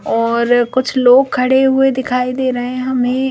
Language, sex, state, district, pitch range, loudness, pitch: Hindi, female, Madhya Pradesh, Bhopal, 245-260 Hz, -14 LUFS, 255 Hz